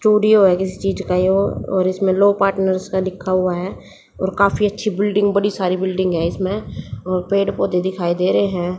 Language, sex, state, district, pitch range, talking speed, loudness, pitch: Hindi, female, Haryana, Jhajjar, 185-200 Hz, 205 wpm, -18 LUFS, 190 Hz